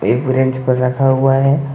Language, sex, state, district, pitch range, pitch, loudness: Hindi, male, Jharkhand, Deoghar, 130-135 Hz, 130 Hz, -14 LUFS